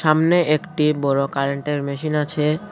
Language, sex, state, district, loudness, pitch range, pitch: Bengali, male, Tripura, Unakoti, -20 LUFS, 140-155 Hz, 150 Hz